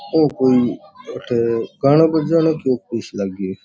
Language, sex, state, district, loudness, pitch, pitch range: Rajasthani, male, Rajasthan, Churu, -18 LUFS, 125 Hz, 115-160 Hz